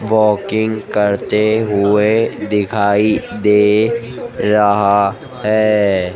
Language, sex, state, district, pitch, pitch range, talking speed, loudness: Hindi, female, Madhya Pradesh, Dhar, 105 Hz, 100-110 Hz, 70 wpm, -14 LUFS